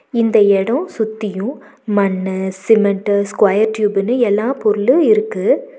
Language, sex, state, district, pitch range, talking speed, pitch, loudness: Tamil, female, Tamil Nadu, Nilgiris, 200-235 Hz, 105 wpm, 210 Hz, -15 LUFS